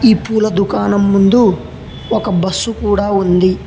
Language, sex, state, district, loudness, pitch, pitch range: Telugu, male, Telangana, Hyderabad, -13 LUFS, 200 Hz, 195-220 Hz